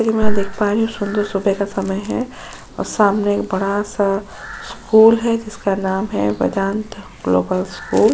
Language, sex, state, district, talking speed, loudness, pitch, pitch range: Hindi, female, Uttar Pradesh, Jyotiba Phule Nagar, 170 wpm, -18 LUFS, 205 Hz, 195-215 Hz